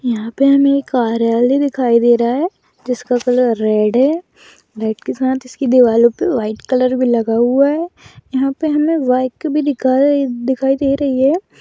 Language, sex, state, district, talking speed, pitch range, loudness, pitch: Magahi, female, Bihar, Gaya, 180 wpm, 240-275 Hz, -15 LUFS, 255 Hz